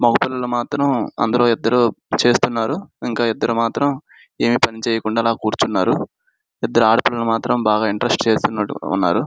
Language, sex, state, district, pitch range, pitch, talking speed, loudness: Telugu, male, Andhra Pradesh, Srikakulam, 115-125 Hz, 115 Hz, 135 wpm, -18 LUFS